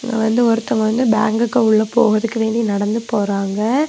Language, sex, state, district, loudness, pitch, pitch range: Tamil, female, Tamil Nadu, Kanyakumari, -17 LUFS, 225 Hz, 215-235 Hz